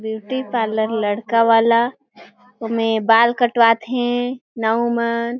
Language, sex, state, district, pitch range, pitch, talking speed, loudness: Chhattisgarhi, female, Chhattisgarh, Jashpur, 225-245 Hz, 230 Hz, 110 wpm, -18 LUFS